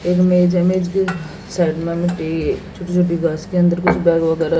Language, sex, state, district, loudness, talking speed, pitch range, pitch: Hindi, female, Haryana, Jhajjar, -17 LUFS, 90 wpm, 165-180 Hz, 175 Hz